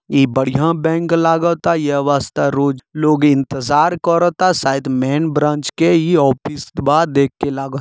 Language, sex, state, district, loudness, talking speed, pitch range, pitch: Bhojpuri, male, Jharkhand, Sahebganj, -16 LUFS, 160 wpm, 135-165 Hz, 150 Hz